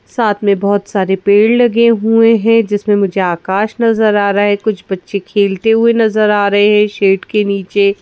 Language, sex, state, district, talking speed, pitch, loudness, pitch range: Hindi, female, Madhya Pradesh, Bhopal, 195 wpm, 205 Hz, -12 LUFS, 200-225 Hz